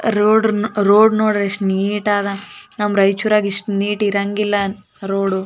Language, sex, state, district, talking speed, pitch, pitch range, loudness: Kannada, female, Karnataka, Raichur, 145 wpm, 205 Hz, 200-210 Hz, -17 LUFS